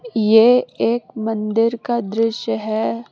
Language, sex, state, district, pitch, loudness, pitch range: Hindi, female, Jharkhand, Palamu, 225 Hz, -18 LUFS, 205-235 Hz